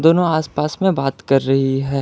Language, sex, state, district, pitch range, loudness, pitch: Hindi, male, Karnataka, Bangalore, 135-160 Hz, -18 LUFS, 140 Hz